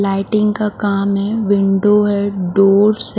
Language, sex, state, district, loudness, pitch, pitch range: Hindi, female, Haryana, Rohtak, -15 LUFS, 200 Hz, 195-210 Hz